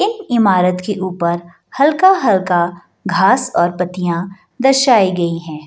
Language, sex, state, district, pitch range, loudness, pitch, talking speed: Hindi, female, Bihar, Jahanabad, 175-245 Hz, -15 LUFS, 185 Hz, 115 wpm